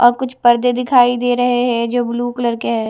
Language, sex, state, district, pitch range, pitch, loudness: Hindi, female, Odisha, Malkangiri, 240-245 Hz, 245 Hz, -15 LUFS